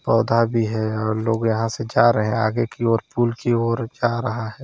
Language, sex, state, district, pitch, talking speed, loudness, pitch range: Hindi, male, Chhattisgarh, Sarguja, 115 Hz, 235 wpm, -21 LUFS, 110-120 Hz